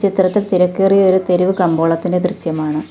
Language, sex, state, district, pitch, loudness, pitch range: Malayalam, female, Kerala, Kollam, 180 Hz, -15 LUFS, 170-195 Hz